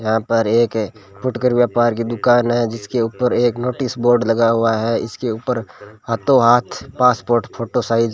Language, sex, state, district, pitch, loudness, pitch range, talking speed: Hindi, male, Rajasthan, Bikaner, 115 Hz, -17 LUFS, 115-120 Hz, 185 wpm